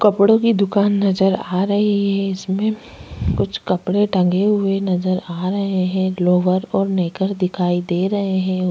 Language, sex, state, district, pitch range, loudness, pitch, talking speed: Hindi, female, Uttarakhand, Tehri Garhwal, 185-200 Hz, -18 LUFS, 190 Hz, 160 wpm